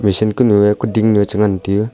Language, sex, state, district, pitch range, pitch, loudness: Wancho, male, Arunachal Pradesh, Longding, 100-110 Hz, 105 Hz, -14 LUFS